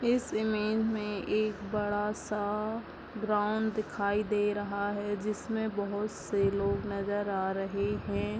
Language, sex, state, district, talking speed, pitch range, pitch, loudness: Hindi, female, Bihar, Bhagalpur, 130 wpm, 200-215 Hz, 205 Hz, -32 LUFS